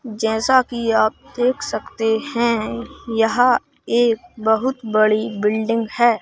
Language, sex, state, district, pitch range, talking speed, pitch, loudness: Hindi, male, Madhya Pradesh, Bhopal, 220-240 Hz, 115 wpm, 230 Hz, -19 LUFS